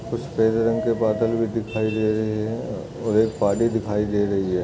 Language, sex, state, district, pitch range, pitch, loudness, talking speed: Hindi, male, Uttar Pradesh, Etah, 105-115 Hz, 110 Hz, -23 LUFS, 195 wpm